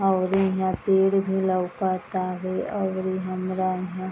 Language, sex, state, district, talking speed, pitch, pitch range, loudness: Bhojpuri, female, Bihar, East Champaran, 160 wpm, 185 Hz, 185-190 Hz, -25 LUFS